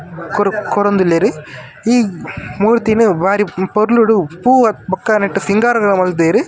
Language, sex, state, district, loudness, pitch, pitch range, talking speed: Tulu, male, Karnataka, Dakshina Kannada, -14 LUFS, 200 Hz, 180-220 Hz, 110 wpm